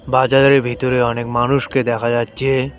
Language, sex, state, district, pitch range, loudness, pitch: Bengali, male, West Bengal, Cooch Behar, 120-135 Hz, -16 LUFS, 130 Hz